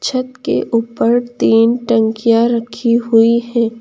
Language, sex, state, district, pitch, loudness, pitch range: Hindi, female, Uttar Pradesh, Lucknow, 235 Hz, -14 LUFS, 230-240 Hz